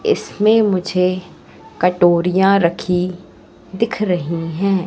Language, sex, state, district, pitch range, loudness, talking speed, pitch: Hindi, female, Madhya Pradesh, Katni, 175-195 Hz, -17 LUFS, 85 wpm, 180 Hz